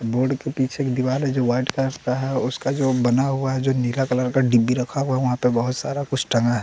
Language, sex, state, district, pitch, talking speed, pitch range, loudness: Hindi, male, Bihar, West Champaran, 130 Hz, 270 wpm, 125-135 Hz, -22 LUFS